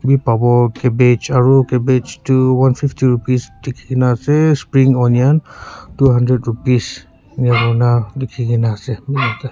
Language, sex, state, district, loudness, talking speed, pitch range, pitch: Nagamese, male, Nagaland, Kohima, -14 LUFS, 150 wpm, 120-135 Hz, 125 Hz